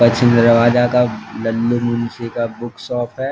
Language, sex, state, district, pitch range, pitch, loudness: Hindi, male, Bihar, East Champaran, 115-120 Hz, 120 Hz, -16 LUFS